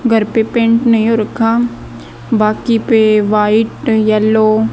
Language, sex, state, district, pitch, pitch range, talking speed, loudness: Hindi, female, Haryana, Rohtak, 225 Hz, 215-230 Hz, 140 wpm, -12 LUFS